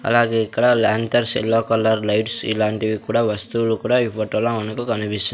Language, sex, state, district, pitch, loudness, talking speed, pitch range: Telugu, male, Andhra Pradesh, Sri Satya Sai, 115 Hz, -20 LUFS, 170 wpm, 110-115 Hz